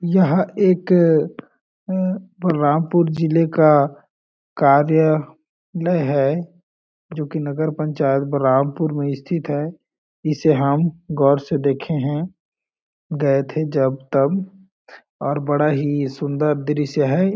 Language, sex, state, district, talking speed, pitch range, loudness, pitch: Hindi, male, Chhattisgarh, Balrampur, 120 wpm, 140-170 Hz, -19 LUFS, 155 Hz